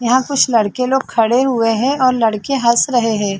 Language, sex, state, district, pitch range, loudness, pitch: Hindi, female, Chhattisgarh, Sarguja, 225-260 Hz, -15 LUFS, 245 Hz